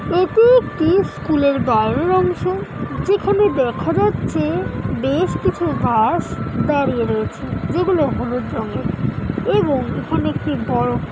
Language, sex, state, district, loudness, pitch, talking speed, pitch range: Bengali, female, West Bengal, North 24 Parganas, -18 LUFS, 355 Hz, 115 wpm, 280-390 Hz